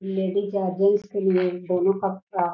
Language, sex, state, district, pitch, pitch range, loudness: Hindi, female, Bihar, Gaya, 190 Hz, 185-200 Hz, -23 LUFS